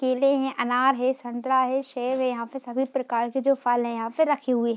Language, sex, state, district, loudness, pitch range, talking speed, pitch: Hindi, female, Bihar, Darbhanga, -25 LUFS, 240-270 Hz, 250 wpm, 255 Hz